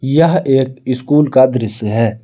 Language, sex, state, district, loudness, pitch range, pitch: Hindi, male, Jharkhand, Palamu, -14 LUFS, 115-140 Hz, 130 Hz